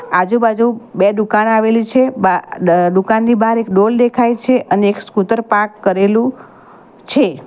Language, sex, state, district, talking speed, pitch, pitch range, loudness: Gujarati, female, Gujarat, Valsad, 150 wpm, 220 Hz, 195-235 Hz, -14 LUFS